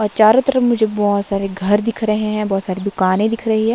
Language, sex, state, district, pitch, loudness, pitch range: Hindi, female, Himachal Pradesh, Shimla, 215 Hz, -16 LUFS, 200-225 Hz